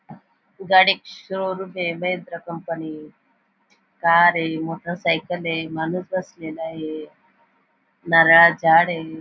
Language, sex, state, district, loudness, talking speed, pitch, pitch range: Marathi, female, Maharashtra, Aurangabad, -19 LUFS, 100 wpm, 170 Hz, 160-180 Hz